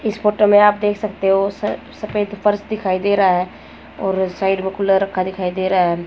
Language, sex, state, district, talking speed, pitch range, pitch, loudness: Hindi, female, Haryana, Jhajjar, 210 wpm, 190-210 Hz, 195 Hz, -18 LUFS